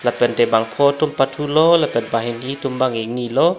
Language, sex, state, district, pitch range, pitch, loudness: Karbi, male, Assam, Karbi Anglong, 120-145 Hz, 135 Hz, -18 LUFS